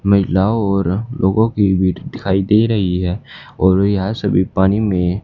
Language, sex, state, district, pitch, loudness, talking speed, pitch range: Hindi, male, Haryana, Charkhi Dadri, 95 Hz, -16 LUFS, 160 wpm, 95-105 Hz